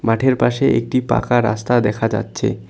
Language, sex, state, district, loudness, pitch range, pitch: Bengali, male, West Bengal, Cooch Behar, -17 LUFS, 110-125 Hz, 115 Hz